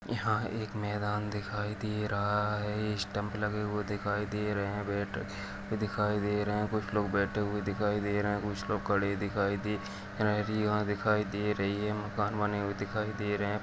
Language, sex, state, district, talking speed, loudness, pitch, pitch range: Kumaoni, male, Uttarakhand, Uttarkashi, 200 wpm, -33 LUFS, 105 Hz, 100-105 Hz